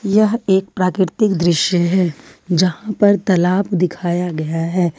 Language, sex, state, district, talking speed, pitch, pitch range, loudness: Hindi, female, Jharkhand, Ranchi, 130 wpm, 185 Hz, 175-200 Hz, -17 LUFS